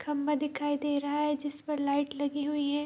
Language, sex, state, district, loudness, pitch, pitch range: Hindi, female, Bihar, Kishanganj, -31 LUFS, 290 Hz, 285-295 Hz